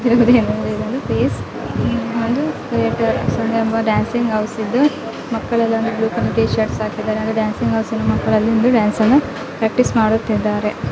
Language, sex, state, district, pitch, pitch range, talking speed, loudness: Kannada, female, Karnataka, Bellary, 225 Hz, 215-235 Hz, 115 wpm, -18 LUFS